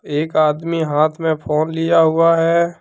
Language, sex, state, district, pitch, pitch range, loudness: Hindi, male, Jharkhand, Deoghar, 160 Hz, 155-165 Hz, -16 LUFS